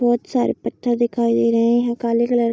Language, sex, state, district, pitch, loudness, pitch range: Hindi, female, Bihar, Araria, 235 Hz, -19 LUFS, 235-240 Hz